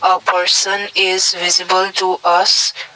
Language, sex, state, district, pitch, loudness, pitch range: English, male, Assam, Kamrup Metropolitan, 185 Hz, -13 LUFS, 180-190 Hz